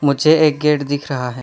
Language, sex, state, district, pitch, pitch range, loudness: Hindi, male, West Bengal, Alipurduar, 145 Hz, 140-150 Hz, -16 LUFS